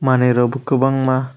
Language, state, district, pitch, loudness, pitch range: Kokborok, Tripura, West Tripura, 130 Hz, -16 LUFS, 125-135 Hz